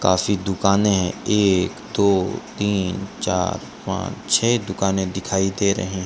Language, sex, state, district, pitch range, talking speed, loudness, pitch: Hindi, male, Rajasthan, Bikaner, 95-100 Hz, 140 wpm, -21 LUFS, 95 Hz